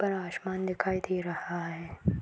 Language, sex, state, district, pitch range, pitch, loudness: Hindi, female, Uttar Pradesh, Budaun, 175-190 Hz, 185 Hz, -33 LUFS